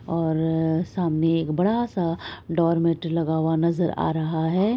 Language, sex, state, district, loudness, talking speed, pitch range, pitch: Hindi, female, Bihar, Araria, -23 LUFS, 150 wpm, 160-170 Hz, 165 Hz